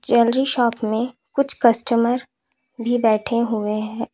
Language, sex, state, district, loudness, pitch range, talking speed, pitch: Hindi, female, Uttar Pradesh, Lalitpur, -20 LUFS, 225-250 Hz, 130 wpm, 235 Hz